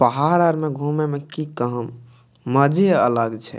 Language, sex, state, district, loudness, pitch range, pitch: Maithili, male, Bihar, Madhepura, -20 LUFS, 120-155 Hz, 140 Hz